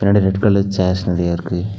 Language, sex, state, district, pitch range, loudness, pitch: Tamil, male, Tamil Nadu, Nilgiris, 90-100 Hz, -17 LUFS, 95 Hz